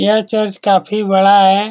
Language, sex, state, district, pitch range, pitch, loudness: Hindi, male, Bihar, Saran, 195-215 Hz, 200 Hz, -12 LUFS